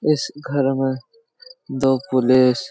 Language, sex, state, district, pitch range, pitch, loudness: Hindi, male, Chhattisgarh, Raigarh, 130-185 Hz, 135 Hz, -19 LUFS